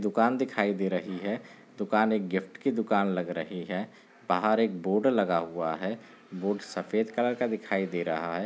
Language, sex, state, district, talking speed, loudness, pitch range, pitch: Hindi, male, Andhra Pradesh, Guntur, 190 wpm, -29 LUFS, 90-110 Hz, 100 Hz